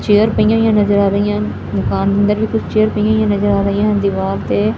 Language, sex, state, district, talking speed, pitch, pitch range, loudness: Punjabi, female, Punjab, Fazilka, 215 wpm, 205 Hz, 190-210 Hz, -15 LUFS